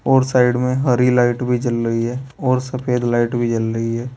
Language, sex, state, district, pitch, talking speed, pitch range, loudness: Hindi, male, Uttar Pradesh, Saharanpur, 125 Hz, 230 wpm, 120-130 Hz, -18 LUFS